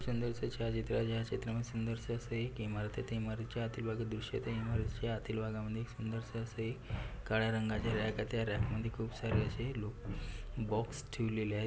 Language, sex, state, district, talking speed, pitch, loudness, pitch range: Marathi, male, Maharashtra, Pune, 170 wpm, 115 Hz, -39 LUFS, 110-115 Hz